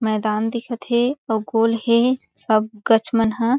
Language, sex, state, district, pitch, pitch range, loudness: Chhattisgarhi, female, Chhattisgarh, Sarguja, 230 Hz, 220-235 Hz, -20 LUFS